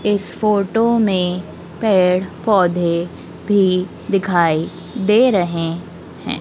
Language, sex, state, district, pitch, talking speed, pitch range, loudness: Hindi, female, Madhya Pradesh, Dhar, 190 Hz, 95 wpm, 175-210 Hz, -17 LUFS